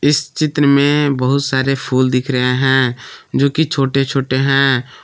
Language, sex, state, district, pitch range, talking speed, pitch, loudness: Hindi, male, Jharkhand, Palamu, 130-140 Hz, 165 wpm, 135 Hz, -15 LUFS